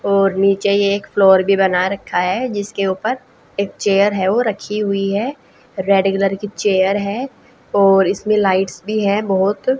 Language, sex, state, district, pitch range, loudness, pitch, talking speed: Hindi, female, Haryana, Jhajjar, 195-210 Hz, -16 LUFS, 200 Hz, 170 wpm